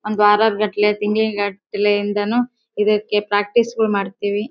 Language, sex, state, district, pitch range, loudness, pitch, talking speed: Kannada, female, Karnataka, Bellary, 205-215 Hz, -18 LUFS, 210 Hz, 120 wpm